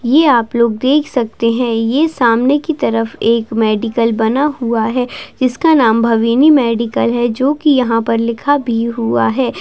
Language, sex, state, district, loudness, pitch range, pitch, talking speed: Hindi, female, Bihar, Begusarai, -14 LUFS, 230-275 Hz, 235 Hz, 175 wpm